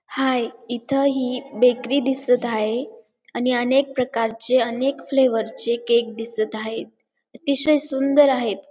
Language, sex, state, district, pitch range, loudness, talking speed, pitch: Marathi, female, Maharashtra, Dhule, 235-275 Hz, -21 LUFS, 125 wpm, 250 Hz